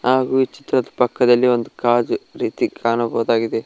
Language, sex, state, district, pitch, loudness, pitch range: Kannada, male, Karnataka, Koppal, 120 Hz, -19 LUFS, 115-125 Hz